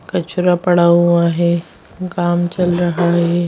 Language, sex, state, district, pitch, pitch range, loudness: Hindi, female, Bihar, Bhagalpur, 175 Hz, 170-175 Hz, -15 LUFS